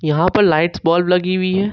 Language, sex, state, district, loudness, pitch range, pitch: Hindi, male, Jharkhand, Ranchi, -16 LUFS, 170-185 Hz, 180 Hz